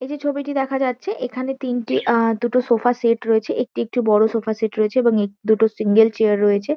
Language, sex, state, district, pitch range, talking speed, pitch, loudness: Bengali, female, West Bengal, Kolkata, 220-255 Hz, 210 wpm, 230 Hz, -19 LUFS